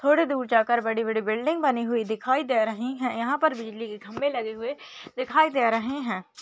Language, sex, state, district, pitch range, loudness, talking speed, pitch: Hindi, female, West Bengal, Dakshin Dinajpur, 225-280 Hz, -25 LUFS, 215 wpm, 240 Hz